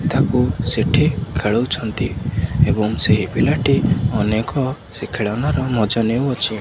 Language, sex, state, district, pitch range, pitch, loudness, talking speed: Odia, male, Odisha, Khordha, 110-130 Hz, 115 Hz, -18 LUFS, 100 wpm